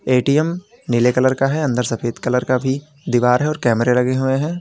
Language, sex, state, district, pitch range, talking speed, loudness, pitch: Hindi, male, Uttar Pradesh, Lalitpur, 125-145 Hz, 220 wpm, -18 LUFS, 130 Hz